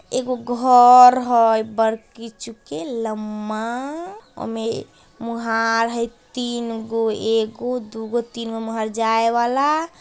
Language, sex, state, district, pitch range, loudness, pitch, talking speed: Bajjika, female, Bihar, Vaishali, 225-245 Hz, -19 LUFS, 230 Hz, 115 wpm